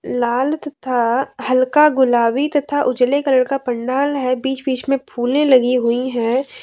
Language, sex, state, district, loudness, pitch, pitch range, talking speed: Hindi, female, Jharkhand, Deoghar, -17 LUFS, 260 Hz, 250-275 Hz, 155 wpm